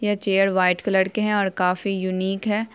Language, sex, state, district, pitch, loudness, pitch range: Hindi, female, Bihar, Saharsa, 195 Hz, -22 LUFS, 185-205 Hz